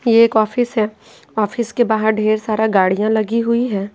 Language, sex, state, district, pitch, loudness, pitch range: Hindi, female, Bihar, Patna, 220 Hz, -17 LUFS, 215-230 Hz